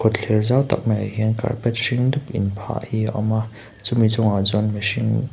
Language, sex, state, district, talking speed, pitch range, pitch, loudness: Mizo, male, Mizoram, Aizawl, 180 wpm, 110-120 Hz, 110 Hz, -21 LUFS